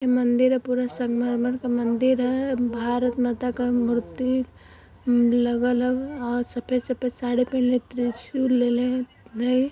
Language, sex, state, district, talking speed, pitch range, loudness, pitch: Hindi, female, Uttar Pradesh, Varanasi, 130 wpm, 240-255 Hz, -24 LUFS, 250 Hz